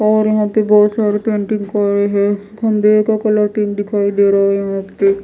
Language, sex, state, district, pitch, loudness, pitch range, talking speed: Hindi, female, Odisha, Malkangiri, 210 Hz, -15 LUFS, 200-215 Hz, 185 wpm